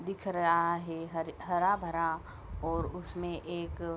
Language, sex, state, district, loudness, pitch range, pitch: Hindi, female, Bihar, Bhagalpur, -33 LUFS, 160-175 Hz, 170 Hz